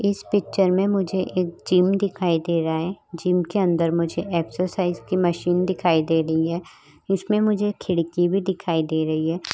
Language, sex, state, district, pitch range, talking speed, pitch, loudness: Hindi, female, Maharashtra, Chandrapur, 165-190 Hz, 190 wpm, 180 Hz, -22 LUFS